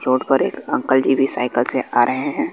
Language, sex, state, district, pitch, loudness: Hindi, male, Bihar, West Champaran, 135 Hz, -17 LUFS